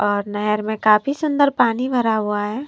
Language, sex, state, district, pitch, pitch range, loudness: Hindi, female, Punjab, Fazilka, 220 Hz, 210-265 Hz, -19 LUFS